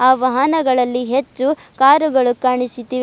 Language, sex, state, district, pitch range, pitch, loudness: Kannada, female, Karnataka, Bidar, 250-275 Hz, 255 Hz, -16 LUFS